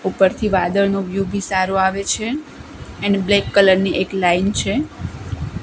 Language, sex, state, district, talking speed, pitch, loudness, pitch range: Gujarati, female, Gujarat, Gandhinagar, 150 wpm, 195 Hz, -18 LUFS, 190-200 Hz